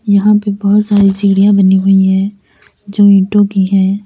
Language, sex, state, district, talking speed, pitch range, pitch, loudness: Hindi, female, Uttar Pradesh, Lalitpur, 175 wpm, 195-205 Hz, 200 Hz, -10 LUFS